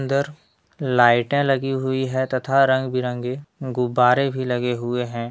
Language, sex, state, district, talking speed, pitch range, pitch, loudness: Hindi, male, Jharkhand, Deoghar, 145 wpm, 125-135 Hz, 130 Hz, -21 LUFS